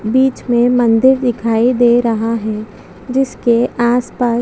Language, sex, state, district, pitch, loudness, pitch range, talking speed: Hindi, female, Chhattisgarh, Bastar, 240 Hz, -14 LUFS, 230-245 Hz, 150 wpm